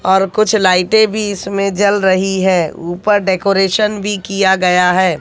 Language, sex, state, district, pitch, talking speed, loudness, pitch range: Hindi, female, Haryana, Jhajjar, 195 Hz, 160 wpm, -13 LUFS, 185-205 Hz